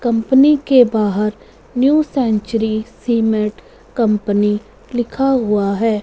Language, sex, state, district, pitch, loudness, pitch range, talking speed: Hindi, female, Punjab, Fazilka, 225 Hz, -16 LUFS, 210-255 Hz, 100 wpm